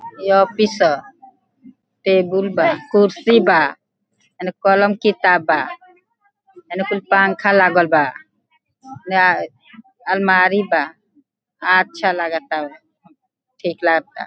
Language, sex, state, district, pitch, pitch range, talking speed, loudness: Bhojpuri, female, Bihar, Gopalganj, 200 Hz, 185-265 Hz, 95 wpm, -16 LUFS